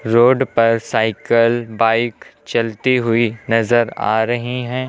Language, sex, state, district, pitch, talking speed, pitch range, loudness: Hindi, male, Uttar Pradesh, Lucknow, 115 Hz, 120 wpm, 115-120 Hz, -17 LUFS